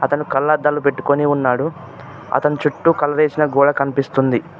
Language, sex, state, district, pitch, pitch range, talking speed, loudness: Telugu, male, Telangana, Mahabubabad, 145 Hz, 135-150 Hz, 115 wpm, -17 LUFS